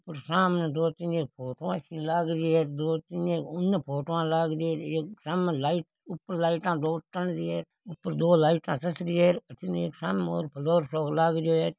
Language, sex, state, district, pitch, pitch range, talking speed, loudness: Marwari, male, Rajasthan, Nagaur, 165 Hz, 155-175 Hz, 215 wpm, -28 LUFS